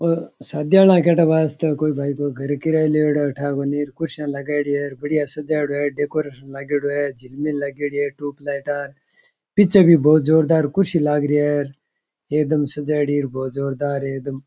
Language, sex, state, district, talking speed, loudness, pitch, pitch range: Rajasthani, male, Rajasthan, Churu, 165 wpm, -19 LUFS, 145 Hz, 140-155 Hz